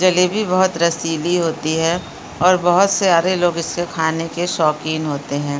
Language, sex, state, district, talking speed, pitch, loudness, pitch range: Hindi, female, Uttarakhand, Uttarkashi, 160 wpm, 170 Hz, -17 LUFS, 160-180 Hz